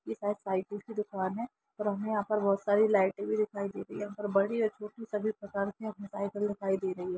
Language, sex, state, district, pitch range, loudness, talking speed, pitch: Hindi, female, Jharkhand, Jamtara, 200-210 Hz, -32 LUFS, 250 wpm, 205 Hz